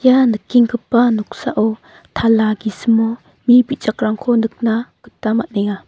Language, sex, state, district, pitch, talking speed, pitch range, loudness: Garo, female, Meghalaya, North Garo Hills, 230 Hz, 100 wpm, 215-240 Hz, -16 LUFS